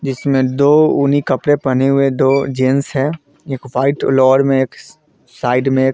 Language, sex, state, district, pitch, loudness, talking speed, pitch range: Hindi, male, Bihar, Vaishali, 135 Hz, -14 LUFS, 170 wpm, 130-140 Hz